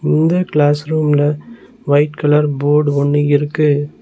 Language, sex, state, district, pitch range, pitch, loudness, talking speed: Tamil, male, Tamil Nadu, Nilgiris, 145-150 Hz, 150 Hz, -14 LUFS, 120 wpm